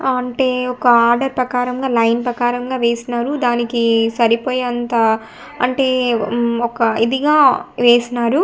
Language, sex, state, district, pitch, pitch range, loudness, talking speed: Telugu, female, Andhra Pradesh, Annamaya, 245 Hz, 235-255 Hz, -16 LUFS, 100 wpm